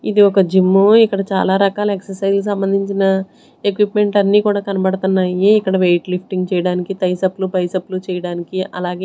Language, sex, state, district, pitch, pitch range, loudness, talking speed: Telugu, female, Andhra Pradesh, Sri Satya Sai, 190 Hz, 185-200 Hz, -16 LUFS, 140 wpm